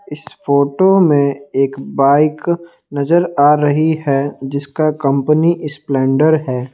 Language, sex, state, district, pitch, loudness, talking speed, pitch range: Hindi, male, Assam, Kamrup Metropolitan, 145 Hz, -14 LUFS, 115 wpm, 140-155 Hz